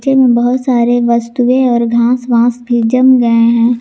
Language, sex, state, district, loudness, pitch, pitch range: Hindi, female, Jharkhand, Garhwa, -11 LUFS, 240 Hz, 235-250 Hz